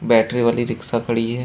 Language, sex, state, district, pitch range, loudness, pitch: Hindi, male, Uttar Pradesh, Shamli, 115-120 Hz, -20 LUFS, 115 Hz